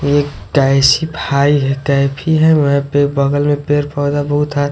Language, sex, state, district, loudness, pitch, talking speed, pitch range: Hindi, male, Odisha, Sambalpur, -14 LUFS, 145 Hz, 180 wpm, 140-145 Hz